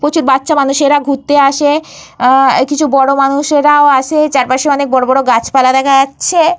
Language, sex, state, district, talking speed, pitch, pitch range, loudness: Bengali, female, Jharkhand, Jamtara, 155 wpm, 280 Hz, 265-295 Hz, -10 LUFS